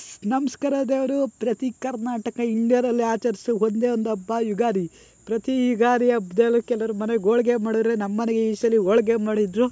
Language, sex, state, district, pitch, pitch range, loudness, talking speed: Kannada, male, Karnataka, Gulbarga, 235 Hz, 225-245 Hz, -22 LUFS, 140 wpm